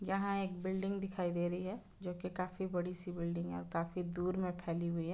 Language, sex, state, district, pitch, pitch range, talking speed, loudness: Hindi, female, Chhattisgarh, Bilaspur, 180 Hz, 175-190 Hz, 235 wpm, -39 LUFS